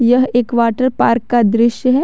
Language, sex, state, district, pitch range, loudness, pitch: Hindi, male, Jharkhand, Garhwa, 235-255 Hz, -14 LUFS, 240 Hz